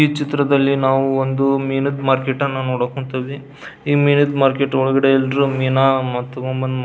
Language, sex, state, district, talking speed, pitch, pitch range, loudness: Kannada, male, Karnataka, Belgaum, 150 wpm, 135 Hz, 130-140 Hz, -17 LUFS